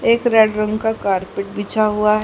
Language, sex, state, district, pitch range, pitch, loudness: Hindi, female, Haryana, Rohtak, 205-220 Hz, 215 Hz, -17 LUFS